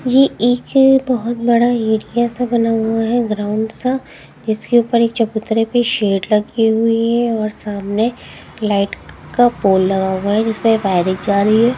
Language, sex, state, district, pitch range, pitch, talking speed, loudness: Hindi, female, Haryana, Jhajjar, 210-240 Hz, 225 Hz, 175 wpm, -16 LUFS